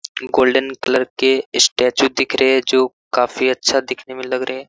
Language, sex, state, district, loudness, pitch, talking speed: Hindi, male, Jharkhand, Sahebganj, -17 LUFS, 130 Hz, 190 wpm